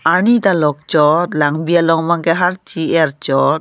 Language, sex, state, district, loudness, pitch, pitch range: Karbi, female, Assam, Karbi Anglong, -14 LUFS, 165 Hz, 150-175 Hz